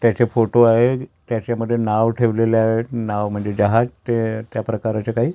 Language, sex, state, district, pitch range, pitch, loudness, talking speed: Marathi, male, Maharashtra, Gondia, 110-120 Hz, 115 Hz, -19 LUFS, 135 wpm